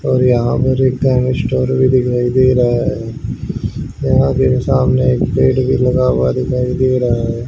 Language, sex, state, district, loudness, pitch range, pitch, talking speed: Hindi, male, Haryana, Charkhi Dadri, -14 LUFS, 115-130 Hz, 125 Hz, 145 wpm